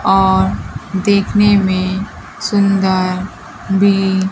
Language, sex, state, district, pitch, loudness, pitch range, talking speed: Hindi, female, Bihar, Kaimur, 190 Hz, -14 LUFS, 185-200 Hz, 70 wpm